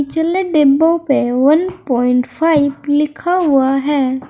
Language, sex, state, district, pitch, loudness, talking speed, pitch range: Hindi, female, Uttar Pradesh, Saharanpur, 290 Hz, -14 LUFS, 125 wpm, 270-320 Hz